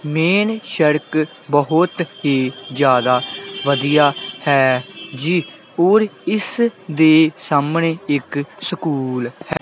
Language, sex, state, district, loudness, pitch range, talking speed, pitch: Punjabi, male, Punjab, Kapurthala, -17 LUFS, 140-175 Hz, 85 wpm, 150 Hz